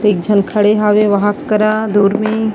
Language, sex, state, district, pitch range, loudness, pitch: Chhattisgarhi, female, Chhattisgarh, Sarguja, 205-215 Hz, -13 LUFS, 210 Hz